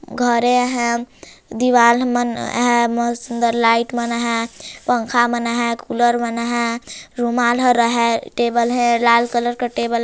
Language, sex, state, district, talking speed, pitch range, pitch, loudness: Chhattisgarhi, female, Chhattisgarh, Jashpur, 155 wpm, 235-240 Hz, 235 Hz, -17 LUFS